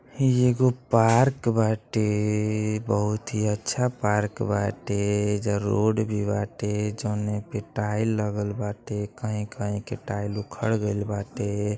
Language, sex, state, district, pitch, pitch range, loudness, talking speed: Bhojpuri, male, Uttar Pradesh, Deoria, 105 Hz, 105-110 Hz, -26 LUFS, 120 wpm